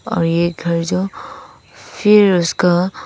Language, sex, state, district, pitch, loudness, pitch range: Hindi, female, Arunachal Pradesh, Papum Pare, 180 Hz, -15 LUFS, 170-190 Hz